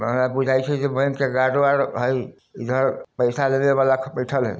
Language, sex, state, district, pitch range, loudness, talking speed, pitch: Hindi, male, Bihar, Samastipur, 125-140 Hz, -21 LUFS, 145 wpm, 130 Hz